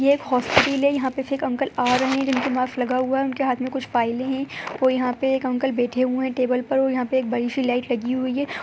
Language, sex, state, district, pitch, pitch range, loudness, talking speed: Hindi, female, Uttar Pradesh, Budaun, 260 Hz, 250-270 Hz, -22 LUFS, 290 wpm